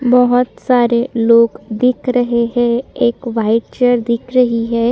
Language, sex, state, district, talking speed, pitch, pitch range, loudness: Hindi, female, Chhattisgarh, Sukma, 145 wpm, 240 Hz, 230-250 Hz, -14 LUFS